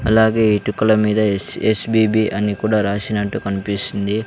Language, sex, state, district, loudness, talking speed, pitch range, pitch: Telugu, male, Andhra Pradesh, Sri Satya Sai, -17 LUFS, 115 wpm, 100-110 Hz, 105 Hz